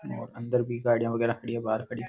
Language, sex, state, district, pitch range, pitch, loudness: Marwari, male, Rajasthan, Nagaur, 115-120 Hz, 120 Hz, -29 LUFS